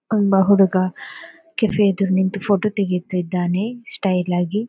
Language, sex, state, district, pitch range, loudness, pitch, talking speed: Kannada, female, Karnataka, Dakshina Kannada, 185-215 Hz, -19 LUFS, 195 Hz, 115 wpm